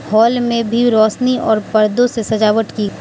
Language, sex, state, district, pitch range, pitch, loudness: Hindi, female, Manipur, Imphal West, 215-235 Hz, 225 Hz, -14 LUFS